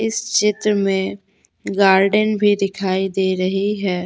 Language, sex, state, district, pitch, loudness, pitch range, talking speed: Hindi, female, Jharkhand, Deoghar, 195 Hz, -18 LUFS, 190-210 Hz, 135 wpm